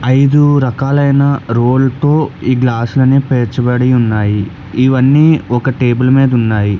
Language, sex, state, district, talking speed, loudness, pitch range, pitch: Telugu, male, Telangana, Hyderabad, 115 wpm, -12 LUFS, 120-140 Hz, 130 Hz